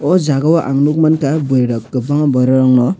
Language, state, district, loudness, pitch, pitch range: Kokborok, Tripura, West Tripura, -13 LUFS, 140 Hz, 130-155 Hz